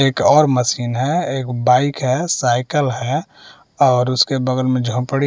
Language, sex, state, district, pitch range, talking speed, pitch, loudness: Hindi, male, Bihar, West Champaran, 125-140 Hz, 170 wpm, 130 Hz, -17 LUFS